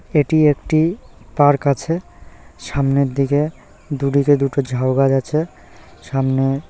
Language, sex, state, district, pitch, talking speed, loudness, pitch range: Bengali, male, West Bengal, North 24 Parganas, 140 Hz, 115 wpm, -18 LUFS, 135-150 Hz